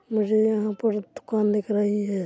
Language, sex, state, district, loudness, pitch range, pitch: Hindi, male, Chhattisgarh, Korba, -24 LUFS, 205-215 Hz, 210 Hz